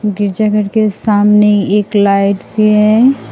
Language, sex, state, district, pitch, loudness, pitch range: Hindi, female, Assam, Sonitpur, 210 Hz, -11 LUFS, 205-215 Hz